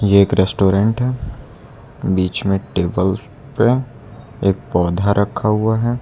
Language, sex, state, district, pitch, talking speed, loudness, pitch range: Hindi, male, Uttar Pradesh, Lucknow, 105 Hz, 140 wpm, -17 LUFS, 95-120 Hz